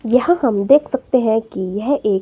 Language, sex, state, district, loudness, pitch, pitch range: Hindi, female, Himachal Pradesh, Shimla, -17 LUFS, 245 Hz, 210-265 Hz